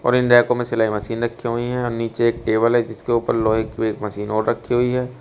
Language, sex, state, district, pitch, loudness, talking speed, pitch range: Hindi, male, Uttar Pradesh, Shamli, 115 Hz, -20 LUFS, 290 wpm, 110-120 Hz